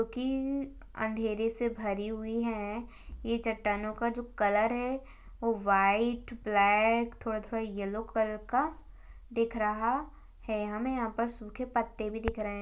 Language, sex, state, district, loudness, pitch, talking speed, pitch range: Hindi, female, Chhattisgarh, Balrampur, -32 LUFS, 225 Hz, 150 wpm, 215-235 Hz